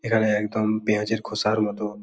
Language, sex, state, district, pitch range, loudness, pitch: Bengali, male, West Bengal, Kolkata, 105-110 Hz, -24 LUFS, 105 Hz